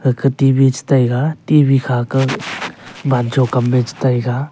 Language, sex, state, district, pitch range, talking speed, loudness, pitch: Wancho, male, Arunachal Pradesh, Longding, 125-135 Hz, 175 wpm, -15 LUFS, 130 Hz